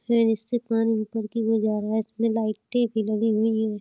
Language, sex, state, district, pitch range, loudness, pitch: Hindi, female, Uttar Pradesh, Jalaun, 215-225 Hz, -24 LUFS, 225 Hz